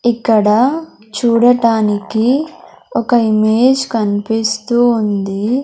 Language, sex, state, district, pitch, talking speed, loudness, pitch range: Telugu, female, Andhra Pradesh, Sri Satya Sai, 230 Hz, 65 wpm, -14 LUFS, 215-245 Hz